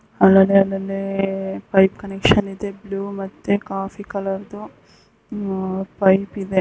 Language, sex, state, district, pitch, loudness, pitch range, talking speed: Kannada, female, Karnataka, Bijapur, 195 Hz, -20 LUFS, 195-200 Hz, 110 wpm